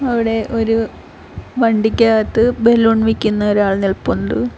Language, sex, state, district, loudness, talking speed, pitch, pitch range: Malayalam, female, Kerala, Kollam, -15 LUFS, 90 wpm, 225 Hz, 205-230 Hz